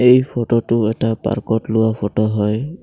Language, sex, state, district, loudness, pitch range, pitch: Assamese, male, Assam, Kamrup Metropolitan, -18 LUFS, 110-120 Hz, 110 Hz